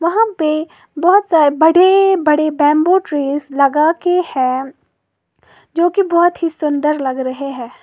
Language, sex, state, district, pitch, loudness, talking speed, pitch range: Hindi, female, Uttar Pradesh, Lalitpur, 310 Hz, -14 LUFS, 140 wpm, 285-350 Hz